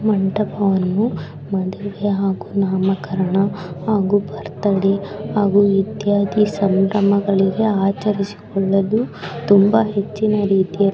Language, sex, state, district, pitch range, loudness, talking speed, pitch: Kannada, female, Karnataka, Raichur, 195-205 Hz, -18 LUFS, 75 wpm, 200 Hz